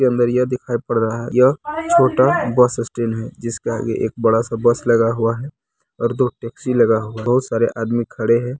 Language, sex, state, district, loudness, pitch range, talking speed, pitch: Hindi, male, Bihar, Muzaffarpur, -18 LUFS, 115-125 Hz, 225 wpm, 120 Hz